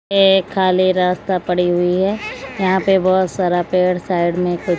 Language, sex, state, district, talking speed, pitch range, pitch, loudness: Hindi, female, Odisha, Malkangiri, 165 wpm, 180-190 Hz, 185 Hz, -16 LUFS